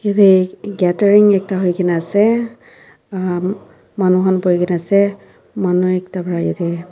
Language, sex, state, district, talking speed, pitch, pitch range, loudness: Nagamese, female, Nagaland, Dimapur, 130 wpm, 185 Hz, 180-200 Hz, -15 LUFS